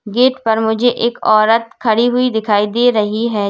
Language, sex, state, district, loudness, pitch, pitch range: Hindi, female, Uttar Pradesh, Lalitpur, -14 LUFS, 225 Hz, 215-240 Hz